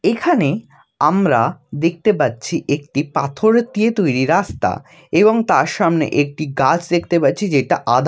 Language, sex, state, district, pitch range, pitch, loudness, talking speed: Bengali, male, West Bengal, Jalpaiguri, 145-205 Hz, 165 Hz, -17 LUFS, 140 wpm